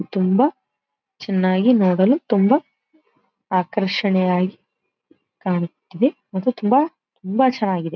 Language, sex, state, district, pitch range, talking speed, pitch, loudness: Kannada, female, Karnataka, Belgaum, 185-255 Hz, 75 wpm, 205 Hz, -19 LUFS